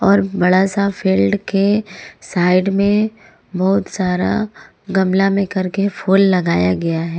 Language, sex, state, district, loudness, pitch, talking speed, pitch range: Hindi, female, Jharkhand, Ranchi, -16 LUFS, 195 Hz, 135 wpm, 180-200 Hz